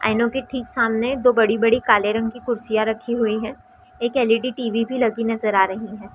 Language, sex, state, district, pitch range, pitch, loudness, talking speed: Hindi, female, Chhattisgarh, Raigarh, 220-240 Hz, 230 Hz, -20 LUFS, 245 wpm